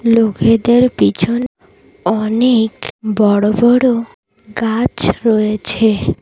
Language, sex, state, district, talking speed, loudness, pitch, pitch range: Bengali, female, Odisha, Malkangiri, 65 wpm, -14 LUFS, 225 Hz, 215-235 Hz